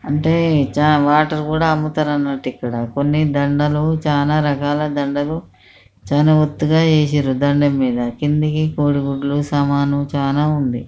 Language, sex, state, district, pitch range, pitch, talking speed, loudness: Telugu, male, Telangana, Karimnagar, 140-150 Hz, 145 Hz, 130 wpm, -17 LUFS